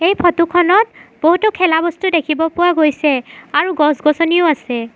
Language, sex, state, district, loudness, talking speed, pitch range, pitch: Assamese, female, Assam, Sonitpur, -14 LUFS, 145 wpm, 305-350 Hz, 330 Hz